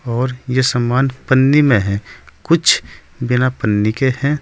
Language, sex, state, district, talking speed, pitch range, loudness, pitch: Hindi, male, Uttar Pradesh, Saharanpur, 150 wpm, 120-135 Hz, -15 LUFS, 130 Hz